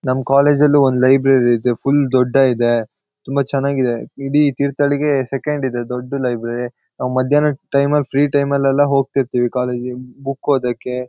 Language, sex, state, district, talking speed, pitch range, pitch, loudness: Kannada, male, Karnataka, Shimoga, 135 wpm, 125-140 Hz, 135 Hz, -17 LUFS